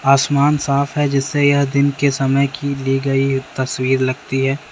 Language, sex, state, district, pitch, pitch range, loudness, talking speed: Hindi, male, Uttar Pradesh, Lalitpur, 140 Hz, 135-140 Hz, -17 LUFS, 190 wpm